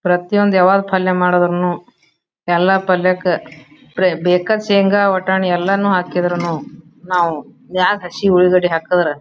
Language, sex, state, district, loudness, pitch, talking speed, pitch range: Kannada, female, Karnataka, Bijapur, -15 LUFS, 180 Hz, 110 wpm, 175-190 Hz